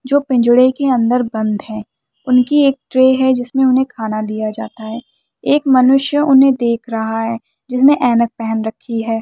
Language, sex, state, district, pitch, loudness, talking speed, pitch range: Hindi, male, Bihar, Bhagalpur, 245 Hz, -14 LUFS, 175 wpm, 225-265 Hz